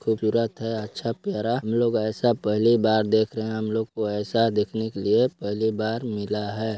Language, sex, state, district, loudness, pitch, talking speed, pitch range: Hindi, male, Chhattisgarh, Balrampur, -24 LUFS, 110 Hz, 205 wpm, 110-115 Hz